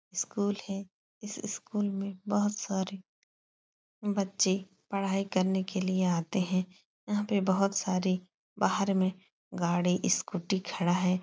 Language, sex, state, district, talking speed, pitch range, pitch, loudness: Hindi, female, Uttar Pradesh, Etah, 130 wpm, 185-200 Hz, 190 Hz, -31 LUFS